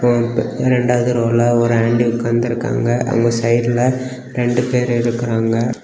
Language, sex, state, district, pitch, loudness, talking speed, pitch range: Tamil, male, Tamil Nadu, Kanyakumari, 120 Hz, -16 LUFS, 125 wpm, 115-125 Hz